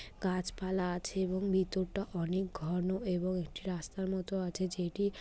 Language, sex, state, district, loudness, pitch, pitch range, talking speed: Bengali, female, West Bengal, Malda, -36 LUFS, 185 Hz, 180-190 Hz, 150 wpm